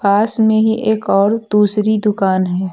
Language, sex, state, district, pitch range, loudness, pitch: Hindi, female, Uttar Pradesh, Lucknow, 200-220 Hz, -14 LUFS, 210 Hz